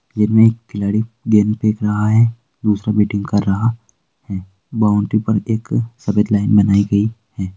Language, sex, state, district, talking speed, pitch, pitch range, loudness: Hindi, male, Uttar Pradesh, Budaun, 160 wpm, 105 Hz, 100-110 Hz, -16 LUFS